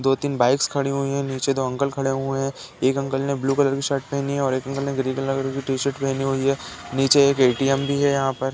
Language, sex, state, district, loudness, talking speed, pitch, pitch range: Hindi, male, Uttar Pradesh, Varanasi, -22 LUFS, 295 wpm, 135 Hz, 135-140 Hz